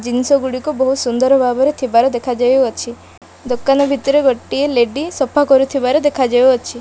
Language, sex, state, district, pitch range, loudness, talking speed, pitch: Odia, female, Odisha, Malkangiri, 245-280 Hz, -15 LUFS, 140 wpm, 260 Hz